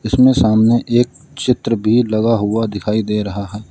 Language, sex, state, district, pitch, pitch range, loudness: Hindi, male, Uttar Pradesh, Lalitpur, 115 Hz, 105-120 Hz, -16 LUFS